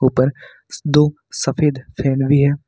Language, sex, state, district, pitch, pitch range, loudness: Hindi, male, Jharkhand, Ranchi, 140 Hz, 135-150 Hz, -18 LUFS